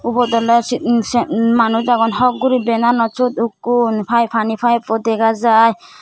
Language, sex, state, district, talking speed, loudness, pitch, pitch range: Chakma, female, Tripura, Dhalai, 180 wpm, -15 LUFS, 235 Hz, 225-240 Hz